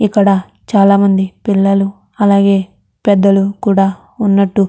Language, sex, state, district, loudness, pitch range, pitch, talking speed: Telugu, female, Andhra Pradesh, Chittoor, -12 LUFS, 195-200 Hz, 200 Hz, 100 wpm